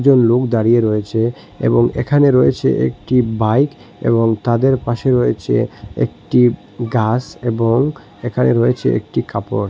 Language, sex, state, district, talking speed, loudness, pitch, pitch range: Bengali, male, Assam, Hailakandi, 115 wpm, -16 LUFS, 120 Hz, 110-125 Hz